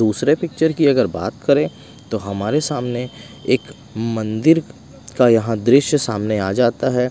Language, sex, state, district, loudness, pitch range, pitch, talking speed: Hindi, male, Odisha, Malkangiri, -18 LUFS, 110-145 Hz, 125 Hz, 150 wpm